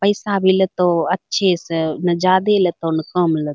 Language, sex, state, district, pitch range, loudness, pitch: Angika, female, Bihar, Bhagalpur, 165-190 Hz, -17 LUFS, 180 Hz